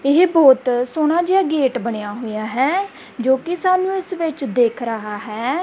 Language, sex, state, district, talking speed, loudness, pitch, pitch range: Punjabi, female, Punjab, Kapurthala, 170 wpm, -18 LUFS, 265 Hz, 235-350 Hz